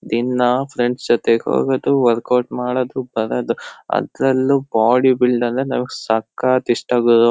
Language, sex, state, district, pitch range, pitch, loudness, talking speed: Kannada, male, Karnataka, Shimoga, 120-130 Hz, 125 Hz, -18 LUFS, 125 wpm